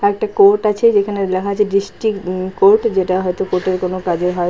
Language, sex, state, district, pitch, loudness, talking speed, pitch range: Bengali, female, West Bengal, Paschim Medinipur, 195 Hz, -16 LUFS, 225 wpm, 185-215 Hz